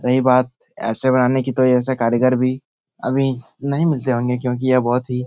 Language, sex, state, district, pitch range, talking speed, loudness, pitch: Hindi, male, Bihar, Supaul, 125-130 Hz, 205 wpm, -18 LUFS, 130 Hz